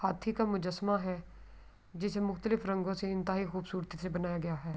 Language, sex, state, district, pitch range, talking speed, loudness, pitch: Urdu, female, Andhra Pradesh, Anantapur, 180-200 Hz, 175 wpm, -35 LUFS, 190 Hz